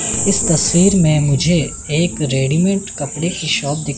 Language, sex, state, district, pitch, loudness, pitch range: Hindi, male, Chandigarh, Chandigarh, 155 Hz, -15 LUFS, 145-175 Hz